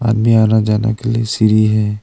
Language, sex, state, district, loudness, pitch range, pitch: Hindi, male, Arunachal Pradesh, Longding, -14 LUFS, 110-115 Hz, 110 Hz